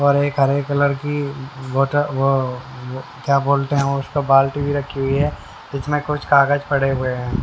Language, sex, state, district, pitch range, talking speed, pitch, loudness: Hindi, male, Haryana, Jhajjar, 135-145 Hz, 175 wpm, 140 Hz, -19 LUFS